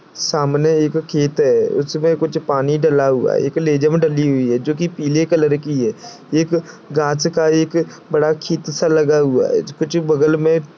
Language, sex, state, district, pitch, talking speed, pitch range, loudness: Hindi, male, Chhattisgarh, Sarguja, 155 Hz, 175 wpm, 150-165 Hz, -17 LUFS